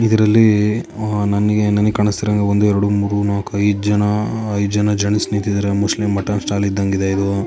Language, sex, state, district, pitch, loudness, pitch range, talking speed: Kannada, male, Karnataka, Dakshina Kannada, 105 Hz, -17 LUFS, 100-105 Hz, 160 wpm